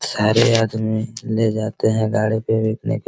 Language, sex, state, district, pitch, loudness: Hindi, male, Bihar, Araria, 110 Hz, -19 LUFS